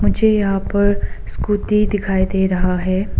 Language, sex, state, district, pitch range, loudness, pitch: Hindi, female, Arunachal Pradesh, Papum Pare, 190-205 Hz, -18 LUFS, 195 Hz